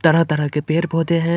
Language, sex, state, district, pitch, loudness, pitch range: Hindi, male, Bihar, Supaul, 165 Hz, -19 LUFS, 150-165 Hz